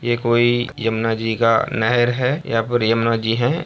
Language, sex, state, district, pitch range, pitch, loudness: Hindi, male, Bihar, Bhagalpur, 115-120 Hz, 120 Hz, -18 LUFS